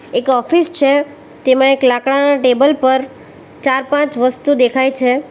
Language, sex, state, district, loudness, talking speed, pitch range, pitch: Gujarati, female, Gujarat, Valsad, -13 LUFS, 145 wpm, 255-285 Hz, 265 Hz